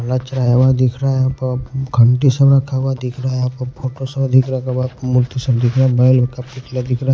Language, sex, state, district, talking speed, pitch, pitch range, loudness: Hindi, male, Punjab, Pathankot, 135 wpm, 130 Hz, 125-130 Hz, -16 LUFS